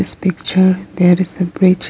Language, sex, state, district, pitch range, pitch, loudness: English, female, Arunachal Pradesh, Lower Dibang Valley, 180-185 Hz, 185 Hz, -14 LUFS